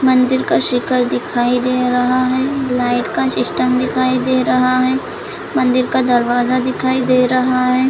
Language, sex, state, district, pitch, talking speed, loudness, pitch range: Hindi, female, Chhattisgarh, Bilaspur, 255 Hz, 160 wpm, -15 LUFS, 245-255 Hz